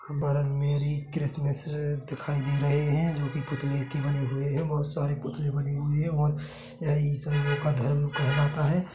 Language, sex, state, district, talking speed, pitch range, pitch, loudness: Hindi, male, Chhattisgarh, Bilaspur, 175 wpm, 140-150 Hz, 145 Hz, -28 LUFS